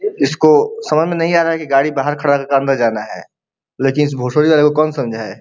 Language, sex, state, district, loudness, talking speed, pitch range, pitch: Bhojpuri, male, Uttar Pradesh, Ghazipur, -15 LUFS, 255 wpm, 135-155 Hz, 150 Hz